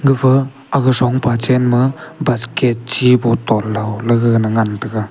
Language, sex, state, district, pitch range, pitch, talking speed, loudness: Wancho, male, Arunachal Pradesh, Longding, 115-130 Hz, 125 Hz, 140 wpm, -15 LUFS